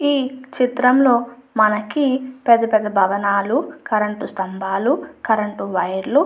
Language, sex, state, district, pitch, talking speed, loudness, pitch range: Telugu, female, Andhra Pradesh, Anantapur, 235 Hz, 115 wpm, -19 LUFS, 205-260 Hz